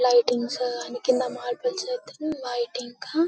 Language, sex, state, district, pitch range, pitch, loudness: Telugu, female, Telangana, Karimnagar, 245-320 Hz, 250 Hz, -27 LUFS